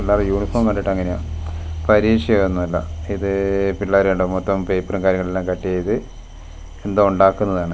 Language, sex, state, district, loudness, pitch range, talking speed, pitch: Malayalam, male, Kerala, Wayanad, -19 LUFS, 90-100 Hz, 125 wpm, 95 Hz